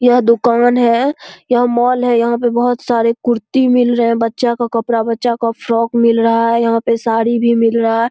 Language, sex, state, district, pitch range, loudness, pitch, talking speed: Hindi, female, Bihar, Saharsa, 230-245 Hz, -14 LUFS, 235 Hz, 230 wpm